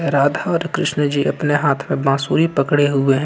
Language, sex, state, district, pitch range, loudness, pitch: Hindi, male, Jharkhand, Ranchi, 140-150 Hz, -17 LUFS, 145 Hz